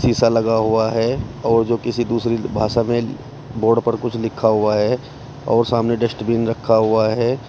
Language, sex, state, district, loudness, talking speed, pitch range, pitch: Hindi, male, Uttar Pradesh, Shamli, -18 LUFS, 175 wpm, 115-120 Hz, 115 Hz